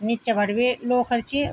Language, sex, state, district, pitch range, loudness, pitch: Garhwali, female, Uttarakhand, Tehri Garhwal, 230-250 Hz, -22 LUFS, 240 Hz